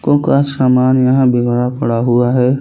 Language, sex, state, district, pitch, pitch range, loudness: Hindi, male, Chhattisgarh, Balrampur, 125 Hz, 120-135 Hz, -13 LUFS